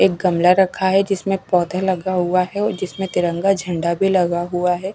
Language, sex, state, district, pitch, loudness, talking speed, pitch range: Hindi, female, Odisha, Nuapada, 185 Hz, -18 LUFS, 205 wpm, 180-195 Hz